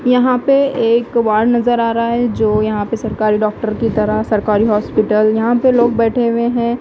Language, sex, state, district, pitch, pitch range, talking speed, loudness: Hindi, female, Bihar, West Champaran, 230 Hz, 215-240 Hz, 200 wpm, -14 LUFS